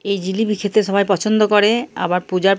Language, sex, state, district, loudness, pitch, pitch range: Bengali, male, Jharkhand, Jamtara, -17 LUFS, 200 Hz, 195-215 Hz